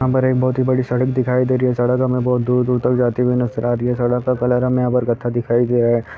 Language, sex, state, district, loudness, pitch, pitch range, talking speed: Hindi, male, Bihar, Gopalganj, -17 LUFS, 125 Hz, 120-125 Hz, 310 wpm